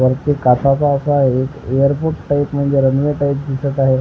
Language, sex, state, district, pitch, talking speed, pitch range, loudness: Marathi, female, Maharashtra, Washim, 140 Hz, 165 wpm, 135-145 Hz, -16 LUFS